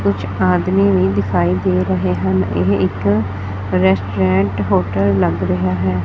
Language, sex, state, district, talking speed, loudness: Punjabi, female, Punjab, Fazilka, 140 wpm, -16 LUFS